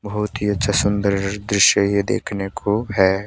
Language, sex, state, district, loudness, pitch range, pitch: Hindi, male, Himachal Pradesh, Shimla, -19 LUFS, 100-105 Hz, 100 Hz